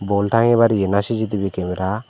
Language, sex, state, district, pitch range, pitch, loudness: Chakma, male, Tripura, Dhalai, 95-115 Hz, 100 Hz, -18 LUFS